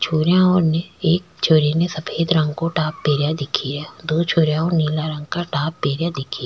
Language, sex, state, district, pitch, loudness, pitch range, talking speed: Rajasthani, female, Rajasthan, Churu, 160 Hz, -19 LUFS, 150-170 Hz, 205 wpm